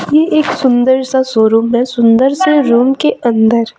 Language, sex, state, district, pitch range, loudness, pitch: Hindi, female, Chhattisgarh, Raipur, 235-270 Hz, -11 LUFS, 255 Hz